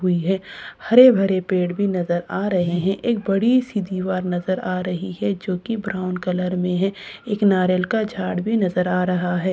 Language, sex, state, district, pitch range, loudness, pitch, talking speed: Hindi, female, Bihar, Katihar, 180-200 Hz, -21 LUFS, 185 Hz, 205 wpm